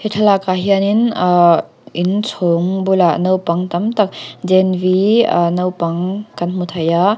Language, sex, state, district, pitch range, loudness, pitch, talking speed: Mizo, female, Mizoram, Aizawl, 175-200 Hz, -15 LUFS, 185 Hz, 125 wpm